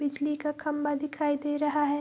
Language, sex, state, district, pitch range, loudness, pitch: Hindi, female, Bihar, Araria, 290-300 Hz, -29 LUFS, 295 Hz